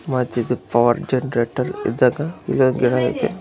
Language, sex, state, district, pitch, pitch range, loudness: Kannada, male, Karnataka, Bellary, 125 Hz, 120-135 Hz, -20 LUFS